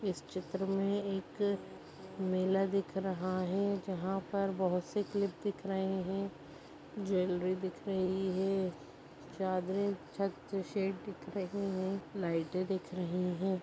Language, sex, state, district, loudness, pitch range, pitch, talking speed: Hindi, female, Chhattisgarh, Sarguja, -36 LUFS, 185-195 Hz, 190 Hz, 130 wpm